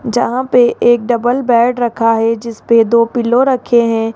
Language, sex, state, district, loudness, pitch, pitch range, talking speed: Hindi, female, Rajasthan, Jaipur, -12 LUFS, 235 Hz, 230-245 Hz, 190 wpm